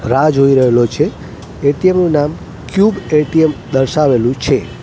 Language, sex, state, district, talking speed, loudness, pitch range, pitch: Gujarati, male, Gujarat, Gandhinagar, 135 wpm, -13 LUFS, 135-160 Hz, 150 Hz